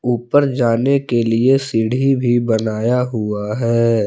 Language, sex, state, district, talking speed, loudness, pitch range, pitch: Hindi, male, Jharkhand, Palamu, 135 wpm, -16 LUFS, 115-130 Hz, 120 Hz